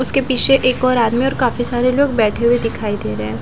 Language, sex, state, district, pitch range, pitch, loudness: Hindi, female, Punjab, Fazilka, 225-255 Hz, 245 Hz, -15 LUFS